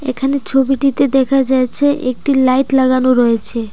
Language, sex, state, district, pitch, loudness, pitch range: Bengali, female, Tripura, Dhalai, 265 Hz, -13 LUFS, 255-275 Hz